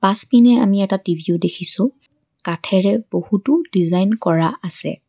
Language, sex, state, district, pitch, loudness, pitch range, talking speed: Assamese, female, Assam, Kamrup Metropolitan, 195 Hz, -17 LUFS, 175-225 Hz, 130 wpm